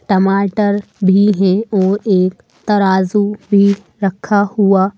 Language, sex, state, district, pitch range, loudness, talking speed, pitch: Hindi, female, Madhya Pradesh, Bhopal, 190-205 Hz, -14 LUFS, 110 wpm, 200 Hz